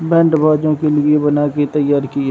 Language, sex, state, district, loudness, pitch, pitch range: Hindi, male, Uttar Pradesh, Hamirpur, -14 LUFS, 150 Hz, 145-155 Hz